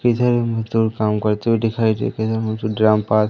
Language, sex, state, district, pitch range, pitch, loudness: Hindi, male, Madhya Pradesh, Umaria, 110-115 Hz, 110 Hz, -19 LUFS